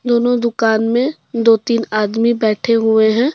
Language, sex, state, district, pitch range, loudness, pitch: Hindi, female, Jharkhand, Deoghar, 220-240 Hz, -15 LUFS, 230 Hz